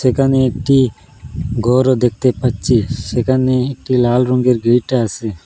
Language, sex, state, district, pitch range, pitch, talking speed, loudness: Bengali, male, Assam, Hailakandi, 120-130 Hz, 125 Hz, 120 wpm, -15 LUFS